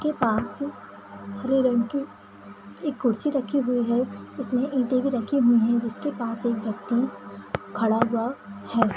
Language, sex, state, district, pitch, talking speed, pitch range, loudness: Kumaoni, male, Uttarakhand, Tehri Garhwal, 235 Hz, 160 wpm, 215-260 Hz, -25 LUFS